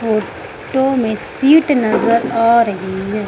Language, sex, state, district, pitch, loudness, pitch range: Hindi, female, Madhya Pradesh, Umaria, 230 Hz, -15 LUFS, 215-265 Hz